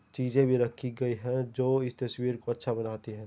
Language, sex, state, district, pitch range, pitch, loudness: Hindi, male, Uttar Pradesh, Jyotiba Phule Nagar, 120-130 Hz, 125 Hz, -30 LUFS